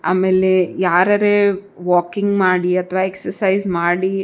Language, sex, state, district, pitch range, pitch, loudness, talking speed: Kannada, female, Karnataka, Bijapur, 180-195 Hz, 185 Hz, -17 LUFS, 115 wpm